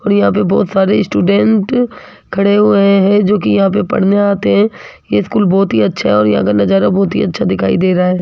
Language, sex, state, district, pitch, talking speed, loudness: Hindi, female, Rajasthan, Jaipur, 195 Hz, 225 wpm, -12 LUFS